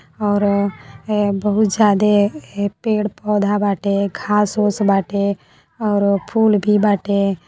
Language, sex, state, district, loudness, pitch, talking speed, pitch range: Bhojpuri, female, Uttar Pradesh, Deoria, -17 LUFS, 205 Hz, 110 wpm, 200-210 Hz